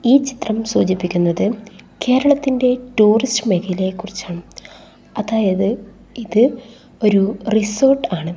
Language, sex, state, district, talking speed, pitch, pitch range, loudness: Malayalam, female, Kerala, Kasaragod, 85 wpm, 220 Hz, 195-250 Hz, -17 LUFS